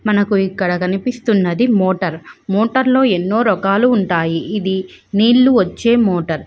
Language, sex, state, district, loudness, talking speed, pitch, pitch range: Telugu, female, Andhra Pradesh, Visakhapatnam, -15 LUFS, 140 wpm, 200 Hz, 185-235 Hz